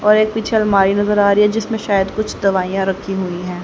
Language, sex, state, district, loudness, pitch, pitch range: Hindi, female, Haryana, Charkhi Dadri, -16 LUFS, 200 Hz, 195-215 Hz